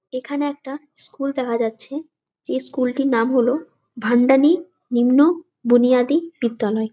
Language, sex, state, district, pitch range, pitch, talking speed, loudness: Bengali, female, West Bengal, Jalpaiguri, 240-290 Hz, 260 Hz, 120 wpm, -19 LUFS